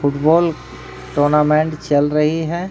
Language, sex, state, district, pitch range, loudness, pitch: Hindi, male, Jharkhand, Ranchi, 145-160 Hz, -16 LUFS, 150 Hz